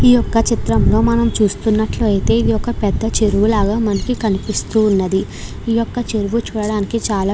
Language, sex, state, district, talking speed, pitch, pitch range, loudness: Telugu, female, Andhra Pradesh, Krishna, 140 wpm, 215 Hz, 205-230 Hz, -16 LUFS